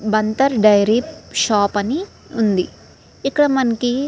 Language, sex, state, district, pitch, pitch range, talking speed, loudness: Telugu, female, Andhra Pradesh, Srikakulam, 230 Hz, 210-275 Hz, 105 wpm, -17 LUFS